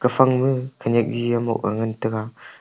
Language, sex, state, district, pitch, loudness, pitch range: Wancho, male, Arunachal Pradesh, Longding, 120 Hz, -22 LUFS, 110-125 Hz